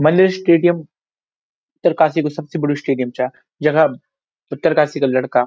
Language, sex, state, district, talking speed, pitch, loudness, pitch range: Garhwali, male, Uttarakhand, Uttarkashi, 140 wpm, 155 Hz, -17 LUFS, 135-165 Hz